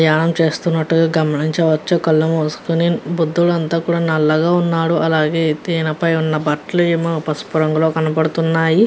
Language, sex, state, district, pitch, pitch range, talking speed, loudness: Telugu, female, Andhra Pradesh, Guntur, 165 Hz, 155-170 Hz, 120 wpm, -16 LUFS